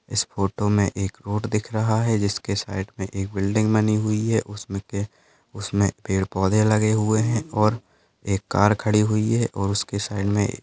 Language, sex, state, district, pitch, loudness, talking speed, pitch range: Hindi, male, Maharashtra, Chandrapur, 105 Hz, -23 LUFS, 200 wpm, 100-110 Hz